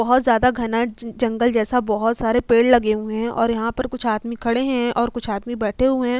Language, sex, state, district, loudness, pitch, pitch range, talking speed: Hindi, female, Uttar Pradesh, Hamirpur, -20 LUFS, 235 Hz, 225-245 Hz, 240 wpm